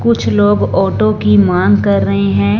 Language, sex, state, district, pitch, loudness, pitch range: Hindi, female, Punjab, Fazilka, 100 Hz, -12 LUFS, 100-105 Hz